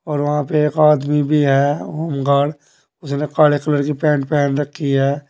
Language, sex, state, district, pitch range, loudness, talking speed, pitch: Hindi, male, Uttar Pradesh, Saharanpur, 140-150 Hz, -17 LUFS, 190 wpm, 145 Hz